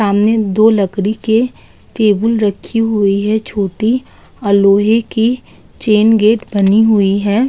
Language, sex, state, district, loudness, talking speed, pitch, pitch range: Hindi, female, Uttar Pradesh, Budaun, -13 LUFS, 135 wpm, 215 Hz, 200-225 Hz